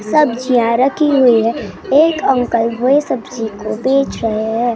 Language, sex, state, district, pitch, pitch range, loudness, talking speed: Hindi, female, Maharashtra, Gondia, 245 Hz, 230-275 Hz, -14 LUFS, 150 wpm